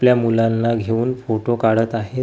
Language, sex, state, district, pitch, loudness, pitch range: Marathi, male, Maharashtra, Gondia, 115 Hz, -18 LUFS, 115-120 Hz